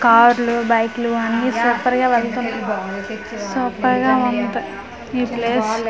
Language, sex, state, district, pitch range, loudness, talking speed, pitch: Telugu, female, Andhra Pradesh, Manyam, 225-245 Hz, -18 LUFS, 130 wpm, 235 Hz